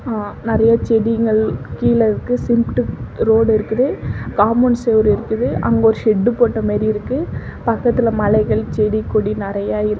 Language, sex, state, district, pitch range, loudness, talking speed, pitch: Tamil, female, Tamil Nadu, Namakkal, 200-230 Hz, -17 LUFS, 140 wpm, 215 Hz